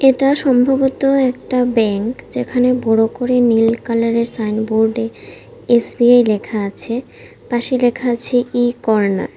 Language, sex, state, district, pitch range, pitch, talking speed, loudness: Bengali, female, Tripura, West Tripura, 225-250 Hz, 240 Hz, 130 wpm, -16 LUFS